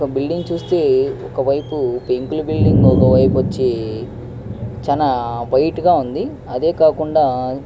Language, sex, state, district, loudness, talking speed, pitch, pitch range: Telugu, male, Andhra Pradesh, Krishna, -17 LUFS, 115 wpm, 135 Hz, 120-160 Hz